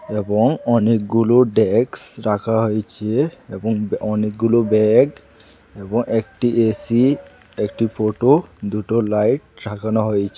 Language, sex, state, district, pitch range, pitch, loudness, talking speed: Bengali, male, Tripura, West Tripura, 105-115 Hz, 110 Hz, -18 LUFS, 100 wpm